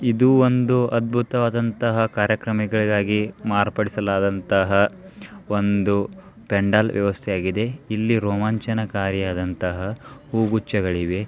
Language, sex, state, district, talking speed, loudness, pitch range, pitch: Kannada, male, Karnataka, Belgaum, 65 wpm, -21 LUFS, 100-115 Hz, 110 Hz